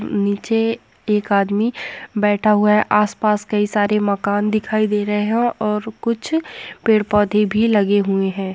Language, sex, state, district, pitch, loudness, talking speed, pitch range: Hindi, female, Jharkhand, Jamtara, 210 Hz, -18 LUFS, 155 wpm, 205-215 Hz